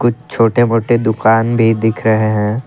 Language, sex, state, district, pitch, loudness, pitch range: Hindi, male, Assam, Kamrup Metropolitan, 115 Hz, -13 LUFS, 110-120 Hz